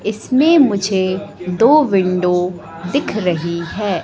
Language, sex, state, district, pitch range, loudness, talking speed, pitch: Hindi, female, Madhya Pradesh, Katni, 180-215 Hz, -16 LUFS, 105 wpm, 190 Hz